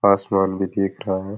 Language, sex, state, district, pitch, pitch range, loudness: Rajasthani, male, Rajasthan, Nagaur, 95 Hz, 95-100 Hz, -21 LUFS